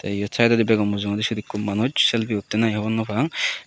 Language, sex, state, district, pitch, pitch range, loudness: Chakma, male, Tripura, West Tripura, 110 Hz, 105-115 Hz, -21 LUFS